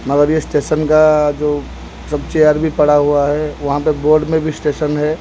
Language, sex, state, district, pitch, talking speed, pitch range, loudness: Hindi, male, Odisha, Khordha, 150 Hz, 205 wpm, 145-155 Hz, -14 LUFS